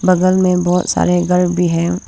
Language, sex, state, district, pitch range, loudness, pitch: Hindi, female, Arunachal Pradesh, Papum Pare, 175-180 Hz, -14 LUFS, 180 Hz